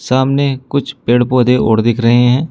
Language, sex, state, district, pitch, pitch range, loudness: Hindi, male, Uttar Pradesh, Shamli, 125 Hz, 120-135 Hz, -13 LUFS